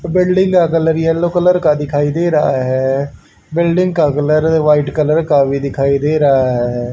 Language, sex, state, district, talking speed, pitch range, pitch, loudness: Hindi, male, Haryana, Charkhi Dadri, 180 wpm, 140-165 Hz, 150 Hz, -14 LUFS